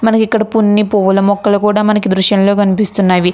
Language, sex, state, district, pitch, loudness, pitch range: Telugu, female, Andhra Pradesh, Krishna, 205 Hz, -11 LUFS, 195-215 Hz